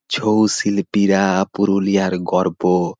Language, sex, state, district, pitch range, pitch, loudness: Bengali, male, West Bengal, Purulia, 95-100 Hz, 100 Hz, -17 LUFS